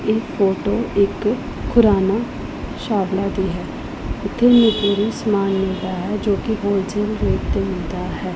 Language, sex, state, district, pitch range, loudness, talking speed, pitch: Punjabi, female, Punjab, Pathankot, 195-220 Hz, -19 LUFS, 120 wpm, 205 Hz